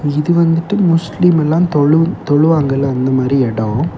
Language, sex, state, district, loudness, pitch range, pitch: Tamil, male, Tamil Nadu, Kanyakumari, -13 LUFS, 135-165 Hz, 150 Hz